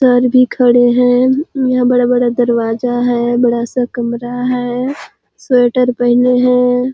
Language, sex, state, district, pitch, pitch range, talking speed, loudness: Hindi, female, Chhattisgarh, Sarguja, 245 Hz, 245-250 Hz, 130 wpm, -13 LUFS